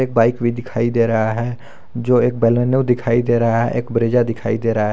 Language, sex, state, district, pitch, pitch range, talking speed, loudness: Hindi, male, Jharkhand, Garhwa, 120 Hz, 115-120 Hz, 245 wpm, -17 LUFS